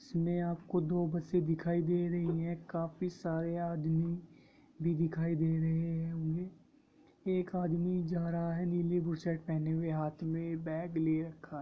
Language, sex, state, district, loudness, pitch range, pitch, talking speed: Hindi, male, Jharkhand, Sahebganj, -35 LUFS, 165-175 Hz, 170 Hz, 165 wpm